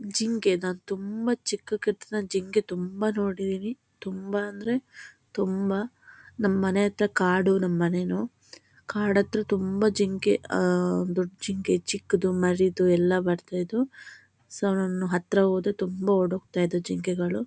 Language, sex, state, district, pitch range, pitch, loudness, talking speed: Kannada, female, Karnataka, Shimoga, 185-205 Hz, 195 Hz, -26 LUFS, 105 wpm